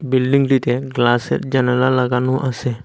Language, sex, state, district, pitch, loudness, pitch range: Bengali, male, Assam, Hailakandi, 130 Hz, -17 LUFS, 125-130 Hz